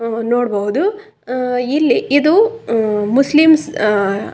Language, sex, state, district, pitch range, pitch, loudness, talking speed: Kannada, female, Karnataka, Raichur, 220-310 Hz, 250 Hz, -15 LUFS, 125 wpm